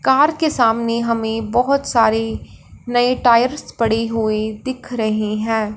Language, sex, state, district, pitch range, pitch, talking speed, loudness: Hindi, female, Punjab, Fazilka, 220-250 Hz, 230 Hz, 135 wpm, -18 LUFS